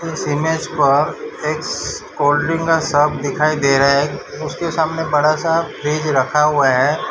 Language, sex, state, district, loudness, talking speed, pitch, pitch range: Hindi, male, Gujarat, Valsad, -17 LUFS, 175 wpm, 150 Hz, 140-160 Hz